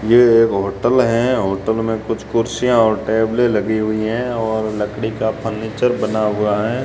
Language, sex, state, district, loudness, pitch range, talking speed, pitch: Hindi, male, Rajasthan, Jaisalmer, -17 LUFS, 110-115 Hz, 175 wpm, 110 Hz